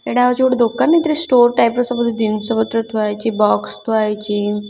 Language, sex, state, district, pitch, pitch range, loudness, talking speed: Odia, female, Odisha, Khordha, 225 Hz, 210-245 Hz, -16 LUFS, 215 wpm